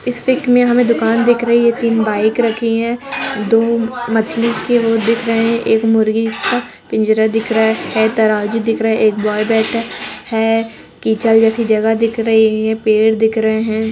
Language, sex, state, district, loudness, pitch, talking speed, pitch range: Hindi, female, Chhattisgarh, Kabirdham, -14 LUFS, 225 Hz, 190 wpm, 220-230 Hz